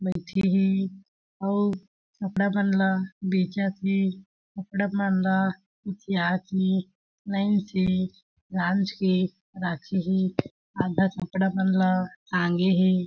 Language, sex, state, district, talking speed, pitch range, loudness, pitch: Chhattisgarhi, female, Chhattisgarh, Jashpur, 120 wpm, 185-195 Hz, -26 LUFS, 190 Hz